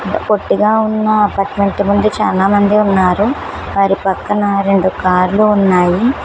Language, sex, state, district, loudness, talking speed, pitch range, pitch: Telugu, female, Telangana, Hyderabad, -13 LUFS, 85 wpm, 190-210 Hz, 200 Hz